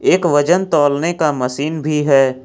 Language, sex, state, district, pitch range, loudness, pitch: Hindi, male, Jharkhand, Ranchi, 140-155 Hz, -15 LUFS, 145 Hz